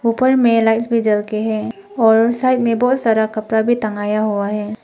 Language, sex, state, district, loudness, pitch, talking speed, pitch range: Hindi, female, Arunachal Pradesh, Papum Pare, -16 LUFS, 225 Hz, 210 wpm, 215-235 Hz